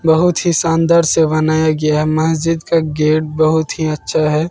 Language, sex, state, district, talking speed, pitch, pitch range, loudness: Hindi, male, Bihar, Katihar, 175 wpm, 160 Hz, 155-165 Hz, -14 LUFS